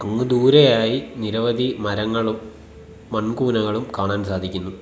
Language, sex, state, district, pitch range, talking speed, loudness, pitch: Malayalam, male, Kerala, Kollam, 100-120 Hz, 85 wpm, -20 LUFS, 110 Hz